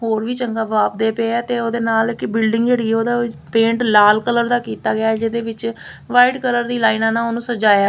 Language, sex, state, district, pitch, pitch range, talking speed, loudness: Punjabi, female, Punjab, Kapurthala, 230 Hz, 225-240 Hz, 220 wpm, -17 LUFS